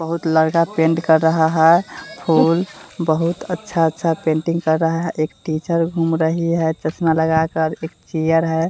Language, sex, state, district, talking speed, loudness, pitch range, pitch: Hindi, female, Bihar, West Champaran, 160 wpm, -18 LUFS, 160-165 Hz, 165 Hz